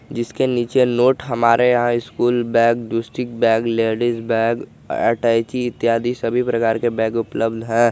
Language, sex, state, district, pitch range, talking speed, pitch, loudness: Hindi, male, Jharkhand, Garhwa, 115-120 Hz, 145 wpm, 115 Hz, -18 LUFS